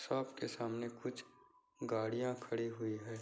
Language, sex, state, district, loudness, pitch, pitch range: Hindi, male, Bihar, Kishanganj, -41 LUFS, 120 Hz, 115-125 Hz